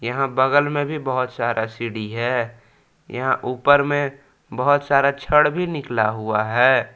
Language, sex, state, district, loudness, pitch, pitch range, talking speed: Hindi, male, Jharkhand, Palamu, -20 LUFS, 130 Hz, 115-145 Hz, 155 wpm